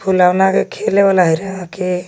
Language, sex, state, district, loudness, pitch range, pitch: Magahi, female, Jharkhand, Palamu, -14 LUFS, 180-195 Hz, 185 Hz